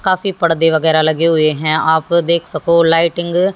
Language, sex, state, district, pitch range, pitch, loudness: Hindi, female, Haryana, Jhajjar, 160-170 Hz, 165 Hz, -13 LUFS